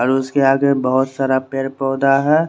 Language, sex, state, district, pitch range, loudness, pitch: Hindi, male, Chandigarh, Chandigarh, 130-140 Hz, -17 LUFS, 135 Hz